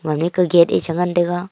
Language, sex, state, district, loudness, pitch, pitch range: Wancho, female, Arunachal Pradesh, Longding, -17 LUFS, 175 Hz, 165-175 Hz